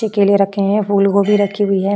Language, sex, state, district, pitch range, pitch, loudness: Hindi, female, Uttar Pradesh, Jyotiba Phule Nagar, 195-205 Hz, 200 Hz, -14 LUFS